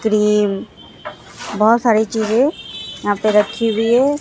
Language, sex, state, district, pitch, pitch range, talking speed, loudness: Hindi, female, Bihar, Katihar, 220 Hz, 210-230 Hz, 130 wpm, -16 LUFS